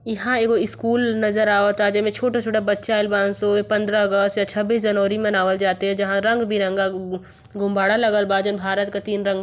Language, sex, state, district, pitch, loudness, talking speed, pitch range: Bhojpuri, female, Uttar Pradesh, Varanasi, 205 Hz, -20 LUFS, 205 wpm, 200-215 Hz